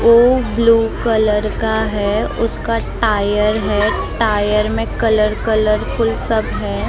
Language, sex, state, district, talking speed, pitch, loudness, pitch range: Hindi, female, Maharashtra, Mumbai Suburban, 120 wpm, 220 Hz, -16 LUFS, 210-225 Hz